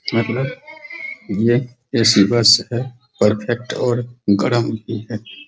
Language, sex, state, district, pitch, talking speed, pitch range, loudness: Hindi, male, Bihar, Araria, 120 Hz, 120 wpm, 110-125 Hz, -17 LUFS